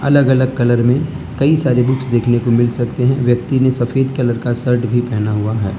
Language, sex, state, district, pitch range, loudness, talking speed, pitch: Hindi, male, Gujarat, Valsad, 120-130 Hz, -15 LUFS, 230 wpm, 125 Hz